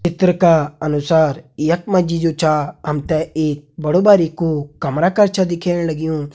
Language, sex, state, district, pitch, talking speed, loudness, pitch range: Hindi, male, Uttarakhand, Uttarkashi, 160 Hz, 170 wpm, -17 LUFS, 150-175 Hz